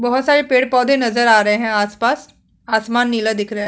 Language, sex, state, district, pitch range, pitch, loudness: Hindi, female, Chhattisgarh, Sukma, 215-250 Hz, 235 Hz, -16 LUFS